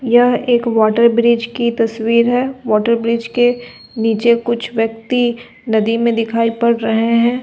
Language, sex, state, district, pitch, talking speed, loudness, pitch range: Hindi, female, Uttar Pradesh, Muzaffarnagar, 235 Hz, 155 wpm, -15 LUFS, 230-240 Hz